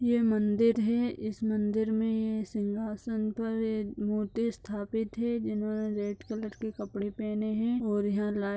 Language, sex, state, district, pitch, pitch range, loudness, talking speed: Hindi, female, Uttar Pradesh, Etah, 215 Hz, 210-225 Hz, -31 LUFS, 170 wpm